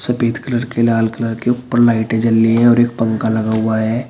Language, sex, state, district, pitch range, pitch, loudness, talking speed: Hindi, male, Uttar Pradesh, Shamli, 110-120 Hz, 115 Hz, -15 LUFS, 250 wpm